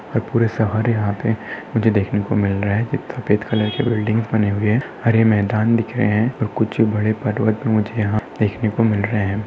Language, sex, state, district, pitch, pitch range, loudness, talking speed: Hindi, male, Maharashtra, Aurangabad, 110 Hz, 105-115 Hz, -19 LUFS, 215 wpm